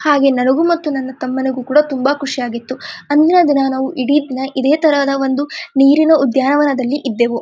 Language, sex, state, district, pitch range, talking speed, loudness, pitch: Kannada, female, Karnataka, Dharwad, 260-295 Hz, 135 wpm, -14 LUFS, 275 Hz